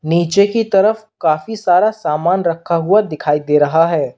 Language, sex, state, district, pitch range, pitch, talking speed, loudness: Hindi, male, Uttar Pradesh, Lalitpur, 160-205 Hz, 170 Hz, 170 wpm, -15 LUFS